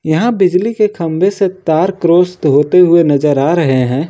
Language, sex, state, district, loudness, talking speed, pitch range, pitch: Hindi, male, Jharkhand, Ranchi, -12 LUFS, 205 wpm, 150-185 Hz, 170 Hz